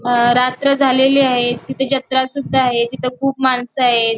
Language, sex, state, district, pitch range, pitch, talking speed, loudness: Marathi, female, Goa, North and South Goa, 245-270 Hz, 260 Hz, 170 wpm, -15 LUFS